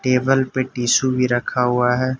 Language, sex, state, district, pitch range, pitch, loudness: Hindi, male, Arunachal Pradesh, Lower Dibang Valley, 125-130 Hz, 125 Hz, -18 LUFS